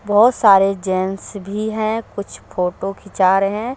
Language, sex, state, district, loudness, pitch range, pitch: Hindi, female, Jharkhand, Deoghar, -17 LUFS, 195-215 Hz, 200 Hz